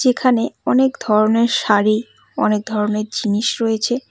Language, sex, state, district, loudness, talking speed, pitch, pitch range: Bengali, female, West Bengal, Cooch Behar, -17 LUFS, 115 wpm, 220 Hz, 215-245 Hz